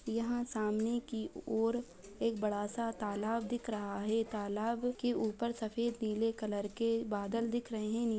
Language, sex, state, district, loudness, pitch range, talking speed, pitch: Bajjika, female, Bihar, Vaishali, -36 LUFS, 210-235 Hz, 170 wpm, 225 Hz